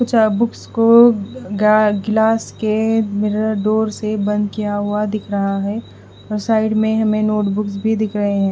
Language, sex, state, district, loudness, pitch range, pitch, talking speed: Hindi, female, Bihar, West Champaran, -17 LUFS, 210-220 Hz, 215 Hz, 185 wpm